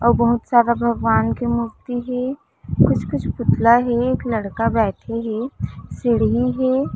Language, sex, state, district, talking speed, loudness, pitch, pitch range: Chhattisgarhi, female, Chhattisgarh, Raigarh, 140 wpm, -19 LUFS, 235 Hz, 230-250 Hz